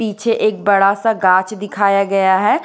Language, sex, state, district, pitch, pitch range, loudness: Hindi, female, Odisha, Khordha, 200 Hz, 195-215 Hz, -15 LUFS